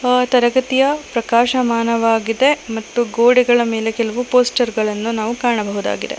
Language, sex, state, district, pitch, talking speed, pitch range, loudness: Kannada, female, Karnataka, Bangalore, 240 Hz, 105 wpm, 225-250 Hz, -16 LUFS